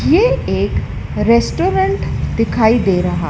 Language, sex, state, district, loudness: Hindi, female, Madhya Pradesh, Dhar, -15 LUFS